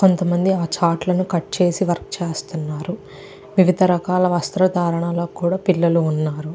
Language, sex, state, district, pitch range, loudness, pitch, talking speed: Telugu, female, Andhra Pradesh, Chittoor, 170-185 Hz, -19 LUFS, 175 Hz, 145 wpm